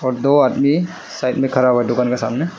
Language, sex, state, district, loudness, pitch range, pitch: Hindi, male, Arunachal Pradesh, Lower Dibang Valley, -17 LUFS, 125-145 Hz, 130 Hz